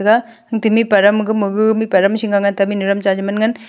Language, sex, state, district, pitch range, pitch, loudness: Wancho, female, Arunachal Pradesh, Longding, 200-220 Hz, 210 Hz, -15 LUFS